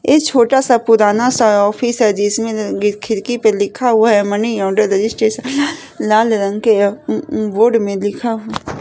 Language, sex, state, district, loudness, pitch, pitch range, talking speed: Hindi, female, Chhattisgarh, Raipur, -14 LUFS, 220 Hz, 205-240 Hz, 165 wpm